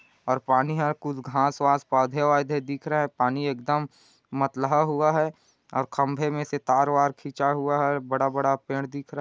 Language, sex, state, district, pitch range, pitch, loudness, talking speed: Hindi, male, Chhattisgarh, Korba, 135-145 Hz, 140 Hz, -25 LUFS, 175 wpm